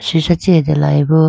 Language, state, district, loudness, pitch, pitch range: Idu Mishmi, Arunachal Pradesh, Lower Dibang Valley, -13 LUFS, 160 Hz, 150-170 Hz